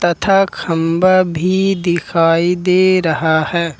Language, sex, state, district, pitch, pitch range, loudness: Hindi, male, Jharkhand, Ranchi, 175 Hz, 165-185 Hz, -14 LUFS